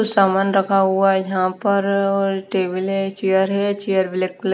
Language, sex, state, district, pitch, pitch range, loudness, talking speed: Hindi, female, Haryana, Rohtak, 195 Hz, 190-195 Hz, -19 LUFS, 200 wpm